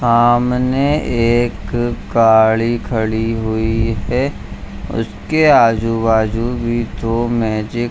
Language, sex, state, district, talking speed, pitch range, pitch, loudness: Hindi, male, Bihar, Jamui, 90 wpm, 110-120 Hz, 115 Hz, -16 LUFS